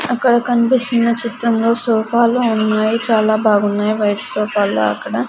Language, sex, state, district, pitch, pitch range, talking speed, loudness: Telugu, female, Andhra Pradesh, Sri Satya Sai, 225 Hz, 215-235 Hz, 115 wpm, -15 LUFS